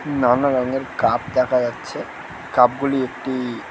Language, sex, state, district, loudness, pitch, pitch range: Bengali, male, West Bengal, Dakshin Dinajpur, -20 LUFS, 130 Hz, 125-135 Hz